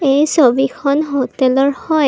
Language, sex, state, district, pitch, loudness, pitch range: Assamese, female, Assam, Kamrup Metropolitan, 275 Hz, -14 LUFS, 265-295 Hz